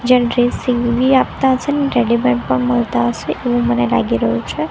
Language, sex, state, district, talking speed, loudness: Gujarati, female, Gujarat, Gandhinagar, 180 wpm, -16 LUFS